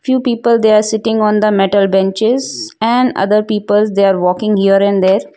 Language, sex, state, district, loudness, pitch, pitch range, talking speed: English, female, Gujarat, Valsad, -12 LUFS, 210 Hz, 195-230 Hz, 200 wpm